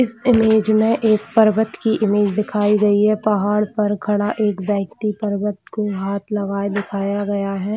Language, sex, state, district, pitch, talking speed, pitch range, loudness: Hindi, female, Chhattisgarh, Bilaspur, 210 Hz, 170 wpm, 200-215 Hz, -18 LUFS